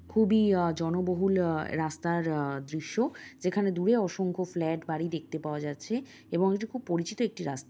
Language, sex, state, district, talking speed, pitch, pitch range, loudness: Bengali, female, West Bengal, North 24 Parganas, 170 wpm, 175 Hz, 160-200 Hz, -30 LUFS